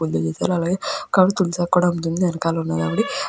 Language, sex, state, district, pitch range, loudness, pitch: Telugu, female, Andhra Pradesh, Chittoor, 125-185 Hz, -20 LUFS, 175 Hz